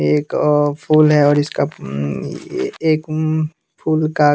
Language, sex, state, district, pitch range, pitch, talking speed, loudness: Hindi, male, Bihar, West Champaran, 145-155 Hz, 150 Hz, 165 wpm, -17 LUFS